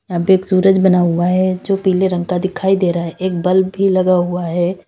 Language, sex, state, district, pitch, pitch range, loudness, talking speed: Hindi, female, Uttar Pradesh, Lalitpur, 185 Hz, 180-190 Hz, -15 LUFS, 260 wpm